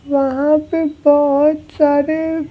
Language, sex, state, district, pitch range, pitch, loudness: Hindi, male, Bihar, Patna, 285-310 Hz, 300 Hz, -15 LUFS